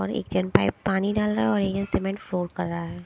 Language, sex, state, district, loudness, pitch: Hindi, female, Haryana, Charkhi Dadri, -25 LUFS, 190 Hz